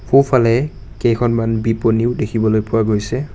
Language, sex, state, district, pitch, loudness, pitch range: Assamese, male, Assam, Kamrup Metropolitan, 115 Hz, -16 LUFS, 110-125 Hz